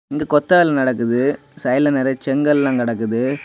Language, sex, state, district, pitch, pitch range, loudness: Tamil, male, Tamil Nadu, Kanyakumari, 135 Hz, 125-145 Hz, -17 LUFS